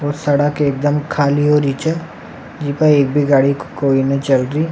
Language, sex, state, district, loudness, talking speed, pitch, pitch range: Rajasthani, male, Rajasthan, Nagaur, -16 LUFS, 190 wpm, 145 Hz, 140-150 Hz